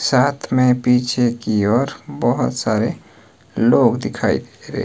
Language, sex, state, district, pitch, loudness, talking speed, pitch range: Hindi, male, Himachal Pradesh, Shimla, 125 Hz, -18 LUFS, 125 wpm, 105-125 Hz